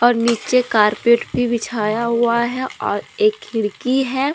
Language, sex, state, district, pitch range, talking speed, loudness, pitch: Hindi, female, Jharkhand, Deoghar, 230-260 Hz, 150 wpm, -18 LUFS, 235 Hz